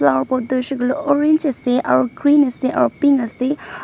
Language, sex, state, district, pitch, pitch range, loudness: Nagamese, female, Nagaland, Dimapur, 260 Hz, 245-285 Hz, -17 LUFS